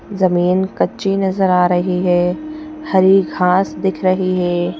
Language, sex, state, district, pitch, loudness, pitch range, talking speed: Hindi, female, Madhya Pradesh, Bhopal, 185 Hz, -16 LUFS, 180-190 Hz, 140 wpm